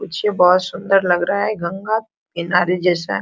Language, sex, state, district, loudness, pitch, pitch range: Hindi, female, Jharkhand, Sahebganj, -18 LUFS, 180 Hz, 175-200 Hz